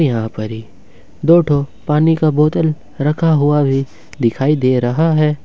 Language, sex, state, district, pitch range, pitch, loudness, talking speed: Hindi, male, Jharkhand, Ranchi, 120-155 Hz, 145 Hz, -15 LUFS, 165 wpm